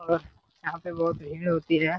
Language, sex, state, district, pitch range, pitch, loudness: Hindi, male, Jharkhand, Jamtara, 160-170 Hz, 170 Hz, -29 LUFS